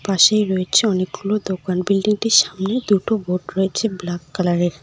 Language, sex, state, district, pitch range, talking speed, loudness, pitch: Bengali, female, West Bengal, Cooch Behar, 180-210 Hz, 135 wpm, -19 LUFS, 190 Hz